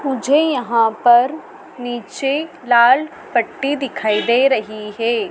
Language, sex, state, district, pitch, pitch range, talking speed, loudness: Hindi, female, Madhya Pradesh, Dhar, 245 Hz, 235-280 Hz, 115 wpm, -17 LUFS